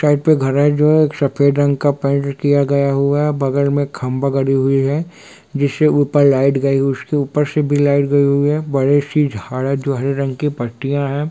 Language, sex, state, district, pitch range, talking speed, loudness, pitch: Hindi, male, Bihar, Sitamarhi, 135-145 Hz, 225 wpm, -16 LUFS, 140 Hz